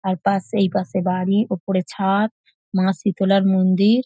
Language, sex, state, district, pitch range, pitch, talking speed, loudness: Bengali, female, West Bengal, North 24 Parganas, 185-200 Hz, 195 Hz, 150 wpm, -20 LUFS